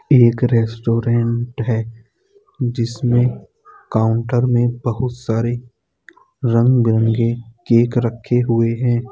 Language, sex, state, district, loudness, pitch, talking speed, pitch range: Hindi, male, Bihar, Bhagalpur, -18 LUFS, 120 Hz, 85 wpm, 115-125 Hz